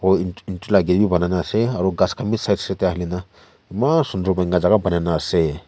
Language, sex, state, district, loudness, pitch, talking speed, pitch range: Nagamese, male, Nagaland, Kohima, -20 LUFS, 95 Hz, 220 wpm, 90-100 Hz